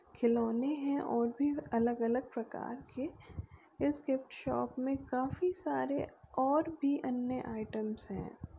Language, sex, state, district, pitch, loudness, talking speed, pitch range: Bhojpuri, female, Uttar Pradesh, Deoria, 255 Hz, -35 LUFS, 125 wpm, 235-285 Hz